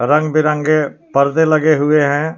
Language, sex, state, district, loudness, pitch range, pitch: Hindi, male, Jharkhand, Palamu, -14 LUFS, 145-155 Hz, 150 Hz